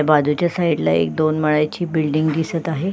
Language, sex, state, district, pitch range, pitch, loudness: Marathi, female, Maharashtra, Sindhudurg, 150-165 Hz, 155 Hz, -19 LUFS